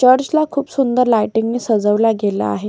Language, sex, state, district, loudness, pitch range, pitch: Marathi, female, Maharashtra, Solapur, -16 LUFS, 210-260 Hz, 230 Hz